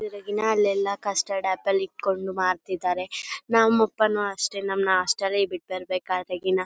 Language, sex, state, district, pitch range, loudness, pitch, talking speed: Kannada, female, Karnataka, Bellary, 185-205 Hz, -25 LUFS, 195 Hz, 115 wpm